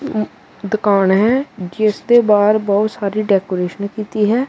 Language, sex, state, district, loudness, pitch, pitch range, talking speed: Punjabi, male, Punjab, Kapurthala, -16 LUFS, 210 Hz, 200-220 Hz, 145 wpm